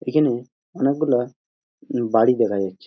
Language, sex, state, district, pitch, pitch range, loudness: Bengali, male, West Bengal, Jhargram, 125 Hz, 110-130 Hz, -21 LUFS